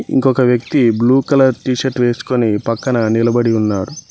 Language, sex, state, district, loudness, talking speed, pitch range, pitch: Telugu, male, Telangana, Mahabubabad, -14 LUFS, 145 wpm, 115-130 Hz, 120 Hz